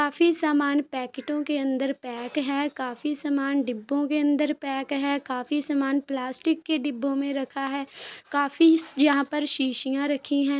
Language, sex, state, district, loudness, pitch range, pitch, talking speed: Hindi, female, Uttar Pradesh, Muzaffarnagar, -25 LUFS, 270-295 Hz, 280 Hz, 160 wpm